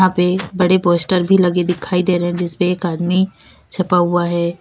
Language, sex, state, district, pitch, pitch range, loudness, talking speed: Hindi, female, Uttar Pradesh, Lalitpur, 180 Hz, 175-185 Hz, -16 LUFS, 210 wpm